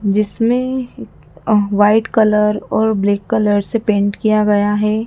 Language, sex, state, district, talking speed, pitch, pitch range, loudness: Hindi, female, Madhya Pradesh, Dhar, 140 wpm, 210 Hz, 205-220 Hz, -15 LUFS